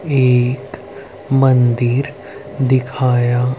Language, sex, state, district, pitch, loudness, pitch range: Hindi, male, Haryana, Rohtak, 130 Hz, -15 LUFS, 125-135 Hz